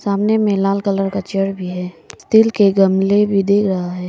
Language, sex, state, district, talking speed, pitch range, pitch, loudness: Hindi, female, Arunachal Pradesh, Papum Pare, 220 wpm, 190-205 Hz, 195 Hz, -16 LUFS